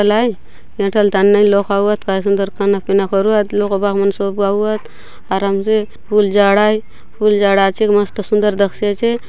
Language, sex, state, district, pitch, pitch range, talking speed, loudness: Halbi, female, Chhattisgarh, Bastar, 205 Hz, 200-210 Hz, 150 wpm, -15 LUFS